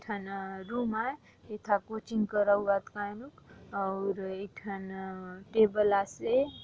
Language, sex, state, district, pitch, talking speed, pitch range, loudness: Halbi, female, Chhattisgarh, Bastar, 205 Hz, 115 wpm, 195-220 Hz, -32 LUFS